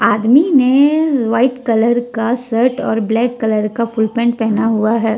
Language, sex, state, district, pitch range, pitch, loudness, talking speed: Hindi, female, Jharkhand, Deoghar, 220-250 Hz, 230 Hz, -14 LUFS, 175 wpm